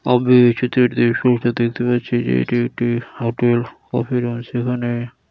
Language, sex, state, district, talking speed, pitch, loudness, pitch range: Bengali, male, West Bengal, Dakshin Dinajpur, 145 wpm, 120 Hz, -18 LUFS, 120-125 Hz